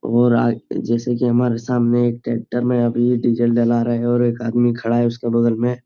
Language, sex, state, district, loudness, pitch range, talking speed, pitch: Hindi, male, Bihar, Supaul, -18 LUFS, 115-120 Hz, 235 wpm, 120 Hz